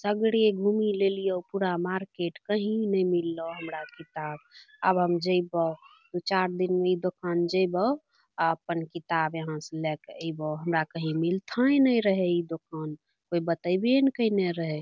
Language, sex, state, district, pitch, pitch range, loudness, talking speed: Angika, female, Bihar, Bhagalpur, 175 Hz, 165-195 Hz, -28 LUFS, 160 wpm